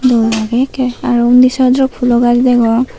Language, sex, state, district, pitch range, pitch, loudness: Chakma, female, Tripura, Unakoti, 240-255 Hz, 245 Hz, -11 LUFS